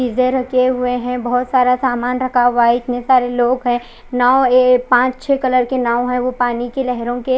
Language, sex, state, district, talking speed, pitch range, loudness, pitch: Hindi, female, Odisha, Khordha, 220 wpm, 245-255 Hz, -16 LUFS, 250 Hz